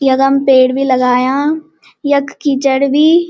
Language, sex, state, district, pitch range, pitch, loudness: Garhwali, female, Uttarakhand, Uttarkashi, 265-290 Hz, 275 Hz, -12 LUFS